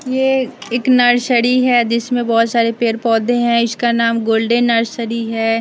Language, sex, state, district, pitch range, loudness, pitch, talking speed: Hindi, female, Bihar, West Champaran, 230-245 Hz, -15 LUFS, 235 Hz, 150 wpm